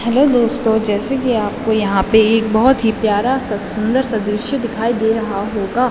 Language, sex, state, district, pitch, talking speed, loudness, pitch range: Hindi, female, Uttarakhand, Tehri Garhwal, 225 Hz, 195 wpm, -16 LUFS, 210-245 Hz